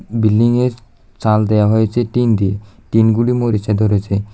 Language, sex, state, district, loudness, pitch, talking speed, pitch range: Bengali, male, Tripura, South Tripura, -15 LUFS, 110 Hz, 150 wpm, 105-115 Hz